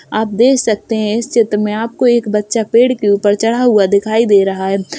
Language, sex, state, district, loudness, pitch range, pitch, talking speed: Hindi, male, Uttar Pradesh, Jalaun, -13 LUFS, 205-230 Hz, 220 Hz, 230 wpm